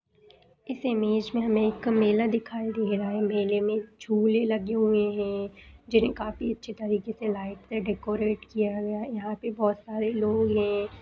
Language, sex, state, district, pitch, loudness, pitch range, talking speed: Hindi, female, Bihar, Madhepura, 215 Hz, -27 LUFS, 210-225 Hz, 175 wpm